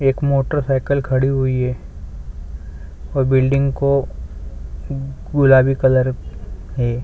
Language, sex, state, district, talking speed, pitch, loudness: Hindi, male, Chhattisgarh, Sukma, 110 wpm, 130 Hz, -17 LUFS